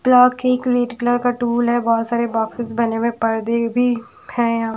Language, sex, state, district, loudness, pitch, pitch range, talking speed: Hindi, female, Haryana, Charkhi Dadri, -19 LUFS, 235 Hz, 230-245 Hz, 165 wpm